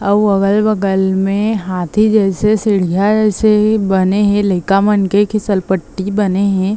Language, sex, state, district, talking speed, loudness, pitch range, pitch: Chhattisgarhi, female, Chhattisgarh, Bilaspur, 160 wpm, -14 LUFS, 190-210 Hz, 200 Hz